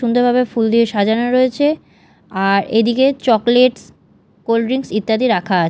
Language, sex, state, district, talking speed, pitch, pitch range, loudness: Bengali, female, Odisha, Malkangiri, 125 wpm, 235 Hz, 220-250 Hz, -15 LUFS